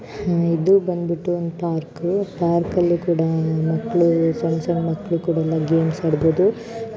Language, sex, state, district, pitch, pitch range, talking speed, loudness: Kannada, female, Karnataka, Bijapur, 170 Hz, 160-180 Hz, 130 wpm, -20 LUFS